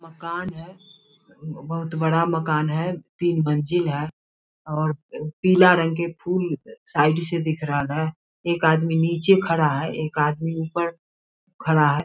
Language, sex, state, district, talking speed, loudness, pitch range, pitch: Hindi, female, Bihar, Sitamarhi, 145 wpm, -22 LUFS, 155-170 Hz, 160 Hz